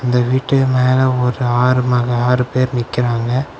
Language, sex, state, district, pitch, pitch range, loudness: Tamil, male, Tamil Nadu, Kanyakumari, 125 Hz, 120-130 Hz, -16 LUFS